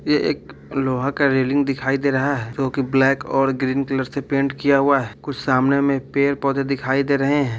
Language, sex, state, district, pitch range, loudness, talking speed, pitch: Hindi, male, Bihar, Vaishali, 135-140 Hz, -20 LUFS, 220 wpm, 135 Hz